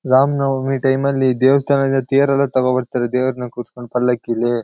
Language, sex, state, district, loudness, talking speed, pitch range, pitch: Kannada, male, Karnataka, Shimoga, -17 LUFS, 105 wpm, 125-135 Hz, 130 Hz